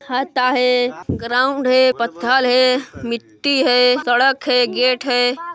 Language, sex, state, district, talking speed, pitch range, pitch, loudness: Hindi, female, Chhattisgarh, Sarguja, 120 wpm, 245-265 Hz, 255 Hz, -16 LUFS